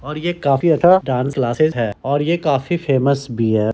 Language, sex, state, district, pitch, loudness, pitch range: Hindi, male, Bihar, Samastipur, 140 Hz, -17 LUFS, 125-160 Hz